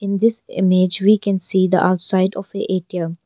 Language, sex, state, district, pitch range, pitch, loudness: English, female, Arunachal Pradesh, Longding, 185-200 Hz, 190 Hz, -18 LUFS